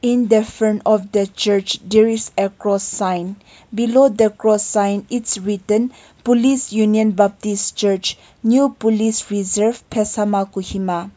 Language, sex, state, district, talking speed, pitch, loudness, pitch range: English, female, Nagaland, Kohima, 140 wpm, 215 Hz, -17 LUFS, 200-225 Hz